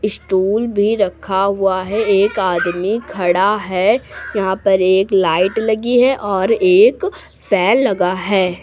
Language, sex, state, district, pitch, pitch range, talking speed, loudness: Hindi, female, Uttar Pradesh, Lucknow, 200 Hz, 190-220 Hz, 140 wpm, -15 LUFS